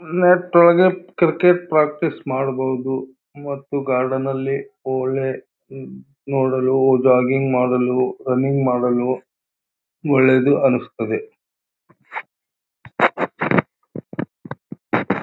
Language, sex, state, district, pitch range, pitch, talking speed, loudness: Kannada, male, Karnataka, Bijapur, 130-145 Hz, 135 Hz, 60 wpm, -18 LUFS